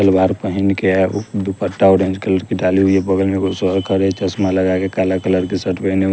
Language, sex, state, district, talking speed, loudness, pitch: Hindi, male, Bihar, West Champaran, 235 wpm, -16 LUFS, 95 Hz